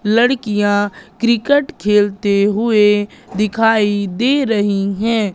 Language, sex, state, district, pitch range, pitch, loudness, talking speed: Hindi, female, Madhya Pradesh, Katni, 205-230 Hz, 210 Hz, -15 LUFS, 90 wpm